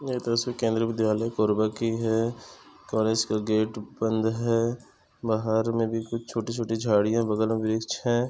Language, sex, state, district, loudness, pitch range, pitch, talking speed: Hindi, male, Chhattisgarh, Korba, -26 LUFS, 110-115 Hz, 115 Hz, 150 wpm